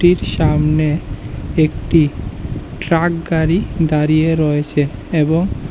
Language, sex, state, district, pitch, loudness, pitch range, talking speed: Bengali, male, Tripura, West Tripura, 155 Hz, -16 LUFS, 145-165 Hz, 75 wpm